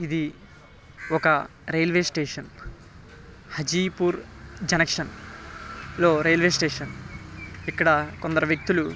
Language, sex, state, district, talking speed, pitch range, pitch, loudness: Telugu, male, Telangana, Nalgonda, 85 wpm, 150-170 Hz, 160 Hz, -24 LUFS